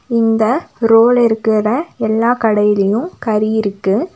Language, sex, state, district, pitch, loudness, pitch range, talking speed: Tamil, female, Tamil Nadu, Nilgiris, 220 Hz, -14 LUFS, 215-230 Hz, 100 wpm